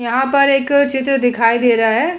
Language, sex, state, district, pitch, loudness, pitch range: Hindi, female, Uttar Pradesh, Hamirpur, 265 Hz, -14 LUFS, 235-275 Hz